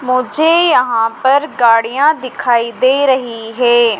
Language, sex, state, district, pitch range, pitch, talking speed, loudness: Hindi, female, Madhya Pradesh, Dhar, 230-270 Hz, 255 Hz, 120 wpm, -12 LUFS